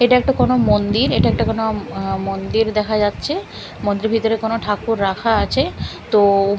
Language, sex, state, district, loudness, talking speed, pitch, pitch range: Bengali, female, Bihar, Katihar, -18 LUFS, 165 wpm, 215 Hz, 205-225 Hz